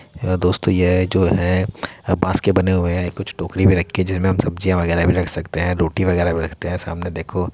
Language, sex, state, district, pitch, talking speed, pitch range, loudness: Hindi, male, Uttar Pradesh, Muzaffarnagar, 90 Hz, 240 wpm, 85-95 Hz, -19 LUFS